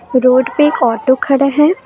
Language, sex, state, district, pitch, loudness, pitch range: Hindi, female, Jharkhand, Palamu, 265 Hz, -12 LUFS, 255-295 Hz